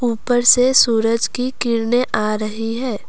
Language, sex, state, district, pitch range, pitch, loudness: Hindi, female, Assam, Kamrup Metropolitan, 225-245 Hz, 235 Hz, -16 LUFS